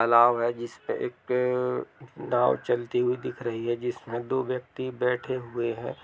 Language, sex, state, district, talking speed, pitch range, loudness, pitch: Hindi, male, Bihar, Sitamarhi, 150 wpm, 120-125 Hz, -28 LUFS, 120 Hz